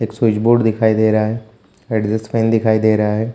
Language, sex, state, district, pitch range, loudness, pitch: Hindi, male, Chhattisgarh, Bilaspur, 110-115 Hz, -16 LUFS, 110 Hz